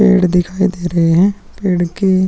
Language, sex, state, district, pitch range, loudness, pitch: Hindi, male, Bihar, Vaishali, 175-195 Hz, -14 LUFS, 185 Hz